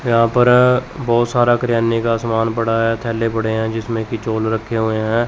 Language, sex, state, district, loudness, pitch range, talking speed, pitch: Hindi, male, Chandigarh, Chandigarh, -17 LUFS, 115-120 Hz, 195 wpm, 115 Hz